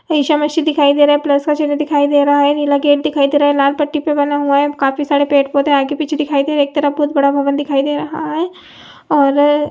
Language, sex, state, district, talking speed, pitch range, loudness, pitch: Hindi, female, Chhattisgarh, Raigarh, 270 wpm, 285-295 Hz, -14 LUFS, 290 Hz